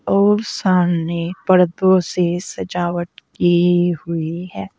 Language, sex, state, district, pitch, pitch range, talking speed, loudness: Hindi, female, Uttar Pradesh, Saharanpur, 175 Hz, 170-185 Hz, 100 wpm, -18 LUFS